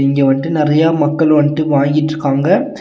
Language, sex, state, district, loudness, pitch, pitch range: Tamil, male, Tamil Nadu, Nilgiris, -13 LUFS, 150 Hz, 140-160 Hz